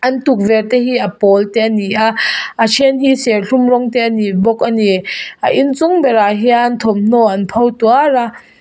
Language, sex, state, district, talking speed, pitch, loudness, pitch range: Mizo, female, Mizoram, Aizawl, 210 wpm, 230 Hz, -12 LUFS, 215-250 Hz